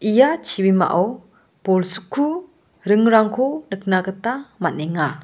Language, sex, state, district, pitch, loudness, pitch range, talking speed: Garo, female, Meghalaya, West Garo Hills, 205 Hz, -19 LUFS, 185-260 Hz, 80 wpm